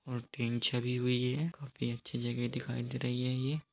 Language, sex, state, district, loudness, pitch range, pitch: Hindi, male, Bihar, East Champaran, -35 LUFS, 120-130 Hz, 125 Hz